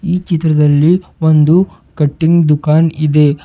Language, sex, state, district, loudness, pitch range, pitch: Kannada, male, Karnataka, Bidar, -12 LUFS, 150-170 Hz, 160 Hz